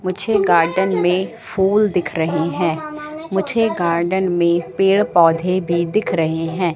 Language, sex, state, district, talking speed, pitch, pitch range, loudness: Hindi, female, Madhya Pradesh, Katni, 140 wpm, 180 Hz, 170-195 Hz, -17 LUFS